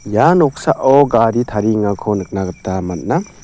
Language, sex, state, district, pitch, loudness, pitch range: Garo, male, Meghalaya, South Garo Hills, 105 Hz, -15 LUFS, 95-125 Hz